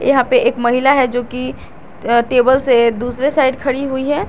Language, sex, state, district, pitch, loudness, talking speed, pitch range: Hindi, female, Jharkhand, Garhwa, 260 Hz, -15 LUFS, 195 wpm, 245-275 Hz